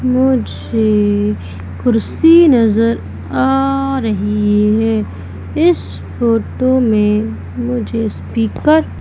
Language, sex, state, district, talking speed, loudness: Hindi, female, Madhya Pradesh, Umaria, 80 wpm, -14 LUFS